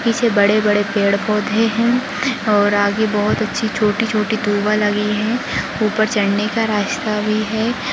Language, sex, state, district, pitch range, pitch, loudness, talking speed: Hindi, female, Maharashtra, Aurangabad, 205-225 Hz, 215 Hz, -17 LUFS, 160 wpm